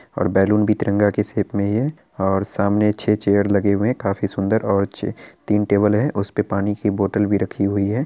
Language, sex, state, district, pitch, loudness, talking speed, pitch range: Hindi, male, Bihar, Araria, 100 Hz, -20 LUFS, 230 wpm, 100-105 Hz